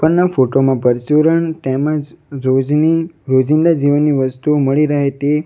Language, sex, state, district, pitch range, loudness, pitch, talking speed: Gujarati, male, Gujarat, Valsad, 135-160 Hz, -15 LUFS, 145 Hz, 145 wpm